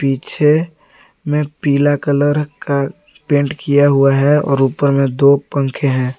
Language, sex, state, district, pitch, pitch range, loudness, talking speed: Hindi, male, Jharkhand, Garhwa, 140 Hz, 140-150 Hz, -15 LUFS, 145 wpm